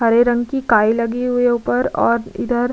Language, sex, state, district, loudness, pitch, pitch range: Hindi, female, Uttar Pradesh, Budaun, -17 LUFS, 240 Hz, 230-245 Hz